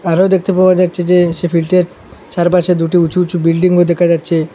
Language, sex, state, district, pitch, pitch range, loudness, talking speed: Bengali, male, Assam, Hailakandi, 175 Hz, 170-180 Hz, -12 LUFS, 185 wpm